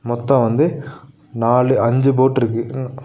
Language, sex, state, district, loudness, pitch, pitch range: Tamil, male, Tamil Nadu, Nilgiris, -17 LUFS, 130 Hz, 120-135 Hz